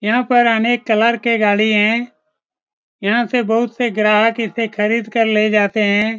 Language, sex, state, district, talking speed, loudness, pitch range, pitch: Hindi, male, Bihar, Saran, 175 wpm, -15 LUFS, 215-235 Hz, 225 Hz